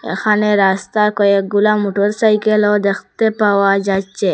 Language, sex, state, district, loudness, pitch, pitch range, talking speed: Bengali, female, Assam, Hailakandi, -15 LUFS, 205 Hz, 195-210 Hz, 95 wpm